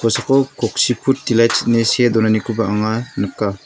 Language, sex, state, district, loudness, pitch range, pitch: Garo, male, Meghalaya, North Garo Hills, -16 LUFS, 110-125 Hz, 115 Hz